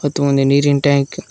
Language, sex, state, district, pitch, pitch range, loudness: Kannada, male, Karnataka, Koppal, 140 Hz, 140-145 Hz, -15 LUFS